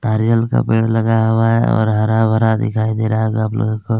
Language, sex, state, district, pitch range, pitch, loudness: Hindi, male, Chhattisgarh, Kabirdham, 110-115 Hz, 110 Hz, -16 LUFS